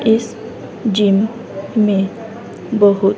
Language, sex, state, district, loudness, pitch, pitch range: Hindi, female, Haryana, Rohtak, -16 LUFS, 220 Hz, 205-225 Hz